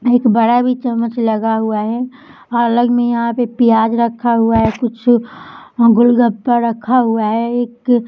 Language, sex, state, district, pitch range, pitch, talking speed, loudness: Hindi, female, Bihar, Samastipur, 230-245 Hz, 235 Hz, 165 wpm, -14 LUFS